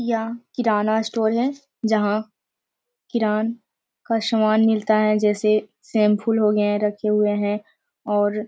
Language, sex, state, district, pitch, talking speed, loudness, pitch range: Hindi, female, Bihar, Jamui, 215 Hz, 135 wpm, -21 LUFS, 210-225 Hz